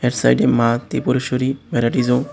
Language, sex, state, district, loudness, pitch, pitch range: Bengali, male, Tripura, West Tripura, -18 LUFS, 125 Hz, 120-130 Hz